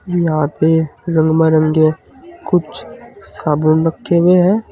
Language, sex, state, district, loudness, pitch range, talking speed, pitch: Hindi, male, Uttar Pradesh, Saharanpur, -14 LUFS, 155-175 Hz, 115 wpm, 160 Hz